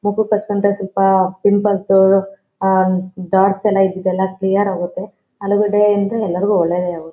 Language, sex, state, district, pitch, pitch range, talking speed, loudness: Kannada, female, Karnataka, Shimoga, 195 Hz, 190-205 Hz, 120 wpm, -16 LUFS